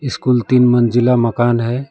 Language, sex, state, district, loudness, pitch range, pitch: Hindi, male, West Bengal, Alipurduar, -14 LUFS, 120-125 Hz, 120 Hz